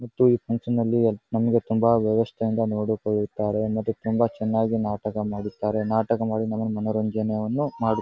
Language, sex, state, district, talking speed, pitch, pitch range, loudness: Kannada, male, Karnataka, Bijapur, 150 wpm, 110 Hz, 110-115 Hz, -24 LUFS